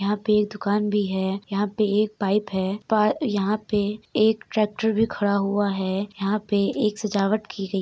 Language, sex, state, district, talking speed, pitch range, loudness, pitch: Hindi, female, Uttar Pradesh, Etah, 205 wpm, 200-215 Hz, -23 LUFS, 205 Hz